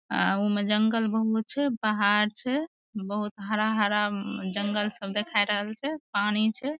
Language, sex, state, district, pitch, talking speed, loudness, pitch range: Maithili, female, Bihar, Madhepura, 210 Hz, 150 wpm, -27 LUFS, 205-220 Hz